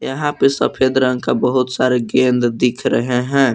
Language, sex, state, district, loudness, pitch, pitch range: Hindi, male, Jharkhand, Palamu, -16 LUFS, 130 Hz, 125-130 Hz